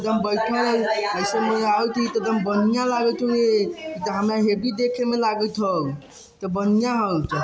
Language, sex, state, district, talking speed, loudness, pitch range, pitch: Bajjika, male, Bihar, Vaishali, 130 wpm, -22 LUFS, 205-235 Hz, 220 Hz